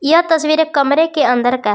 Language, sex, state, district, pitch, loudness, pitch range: Hindi, female, Jharkhand, Palamu, 300 Hz, -14 LUFS, 250-320 Hz